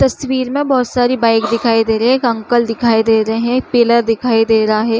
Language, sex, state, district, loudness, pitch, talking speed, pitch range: Chhattisgarhi, female, Chhattisgarh, Rajnandgaon, -14 LUFS, 235 Hz, 250 wpm, 225-250 Hz